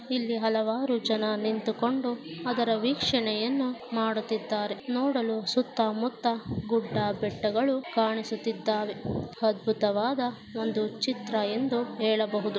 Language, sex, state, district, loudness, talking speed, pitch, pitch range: Kannada, female, Karnataka, Dakshina Kannada, -29 LUFS, 85 wpm, 225 Hz, 220-245 Hz